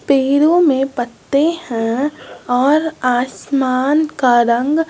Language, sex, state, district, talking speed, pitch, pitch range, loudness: Hindi, male, Bihar, West Champaran, 110 wpm, 275 Hz, 250-305 Hz, -16 LUFS